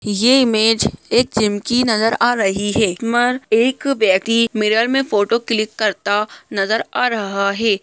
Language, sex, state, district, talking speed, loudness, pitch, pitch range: Hindi, female, Bihar, Lakhisarai, 155 wpm, -16 LUFS, 220 Hz, 205-240 Hz